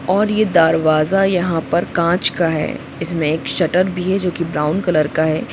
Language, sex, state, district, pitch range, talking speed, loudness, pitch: Hindi, female, Jharkhand, Sahebganj, 155-185 Hz, 205 wpm, -17 LUFS, 170 Hz